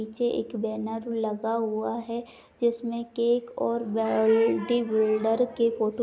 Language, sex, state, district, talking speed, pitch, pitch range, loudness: Hindi, female, Uttar Pradesh, Etah, 140 wpm, 230 Hz, 220-235 Hz, -27 LUFS